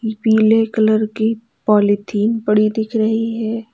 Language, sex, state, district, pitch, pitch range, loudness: Hindi, female, Uttar Pradesh, Lalitpur, 220 Hz, 215-225 Hz, -16 LUFS